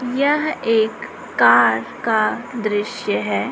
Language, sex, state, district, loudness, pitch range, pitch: Hindi, female, Chhattisgarh, Raipur, -18 LUFS, 210-250 Hz, 225 Hz